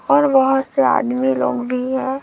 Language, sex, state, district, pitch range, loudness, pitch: Hindi, female, Chhattisgarh, Raipur, 260-270 Hz, -17 LUFS, 265 Hz